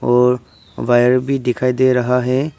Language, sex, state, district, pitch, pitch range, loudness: Hindi, male, Arunachal Pradesh, Papum Pare, 125 Hz, 125-130 Hz, -16 LUFS